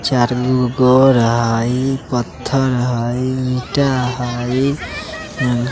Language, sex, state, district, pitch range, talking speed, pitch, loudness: Bajjika, male, Bihar, Vaishali, 120-130 Hz, 95 wpm, 125 Hz, -16 LUFS